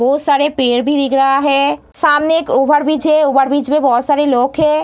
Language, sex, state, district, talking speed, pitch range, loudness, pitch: Hindi, female, Bihar, Darbhanga, 210 wpm, 270-300 Hz, -13 LUFS, 285 Hz